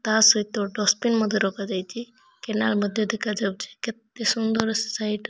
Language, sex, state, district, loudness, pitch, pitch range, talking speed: Odia, male, Odisha, Malkangiri, -24 LUFS, 215 Hz, 210-225 Hz, 135 wpm